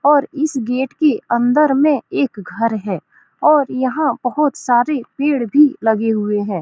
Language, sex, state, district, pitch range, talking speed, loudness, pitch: Hindi, female, Bihar, Saran, 230-295 Hz, 170 wpm, -17 LUFS, 260 Hz